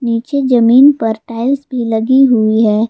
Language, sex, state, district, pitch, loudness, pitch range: Hindi, female, Jharkhand, Garhwa, 235 Hz, -12 LUFS, 225-265 Hz